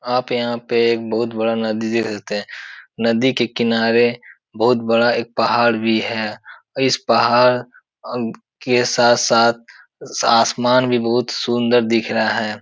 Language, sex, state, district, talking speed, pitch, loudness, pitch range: Hindi, male, Uttar Pradesh, Etah, 150 wpm, 115 Hz, -17 LUFS, 115-120 Hz